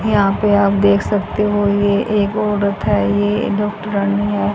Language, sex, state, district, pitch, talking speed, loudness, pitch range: Hindi, female, Haryana, Jhajjar, 205 Hz, 170 wpm, -16 LUFS, 200-205 Hz